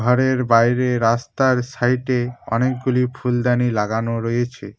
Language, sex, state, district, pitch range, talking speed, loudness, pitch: Bengali, male, West Bengal, Cooch Behar, 115-125 Hz, 100 wpm, -19 LUFS, 125 Hz